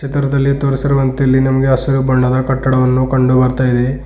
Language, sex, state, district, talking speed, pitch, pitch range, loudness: Kannada, male, Karnataka, Bidar, 150 wpm, 130 Hz, 130-135 Hz, -13 LUFS